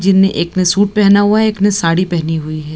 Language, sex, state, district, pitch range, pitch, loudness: Hindi, female, Bihar, Samastipur, 165-205 Hz, 190 Hz, -13 LUFS